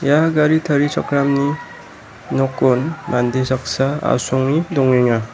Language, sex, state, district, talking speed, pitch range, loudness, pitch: Garo, male, Meghalaya, West Garo Hills, 90 wpm, 130-150 Hz, -17 LUFS, 140 Hz